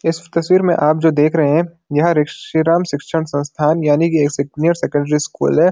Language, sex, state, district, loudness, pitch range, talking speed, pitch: Hindi, male, Uttarakhand, Uttarkashi, -16 LUFS, 150-165 Hz, 200 wpm, 160 Hz